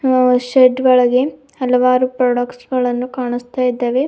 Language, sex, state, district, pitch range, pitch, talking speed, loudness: Kannada, female, Karnataka, Bidar, 245-255 Hz, 250 Hz, 120 wpm, -15 LUFS